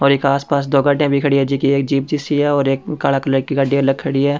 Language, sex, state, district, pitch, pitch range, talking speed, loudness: Rajasthani, male, Rajasthan, Churu, 140 Hz, 135-140 Hz, 285 wpm, -16 LUFS